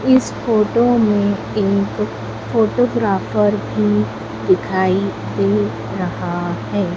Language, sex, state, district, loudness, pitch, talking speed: Hindi, female, Madhya Pradesh, Dhar, -18 LUFS, 185 Hz, 85 wpm